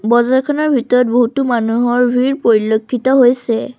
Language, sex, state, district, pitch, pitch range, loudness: Assamese, female, Assam, Sonitpur, 245 Hz, 235-260 Hz, -14 LUFS